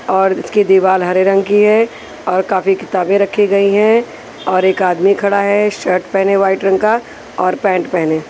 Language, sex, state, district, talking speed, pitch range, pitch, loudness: Hindi, female, Maharashtra, Washim, 190 wpm, 185-205 Hz, 195 Hz, -13 LUFS